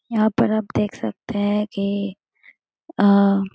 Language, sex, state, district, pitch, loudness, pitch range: Hindi, female, Bihar, Gaya, 200 Hz, -20 LUFS, 195-215 Hz